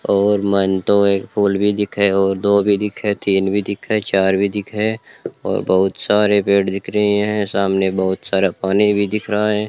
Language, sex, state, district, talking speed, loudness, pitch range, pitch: Hindi, male, Rajasthan, Bikaner, 200 wpm, -17 LUFS, 95-105 Hz, 100 Hz